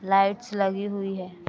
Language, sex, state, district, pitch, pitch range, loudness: Hindi, female, Bihar, Araria, 195 Hz, 190-200 Hz, -26 LUFS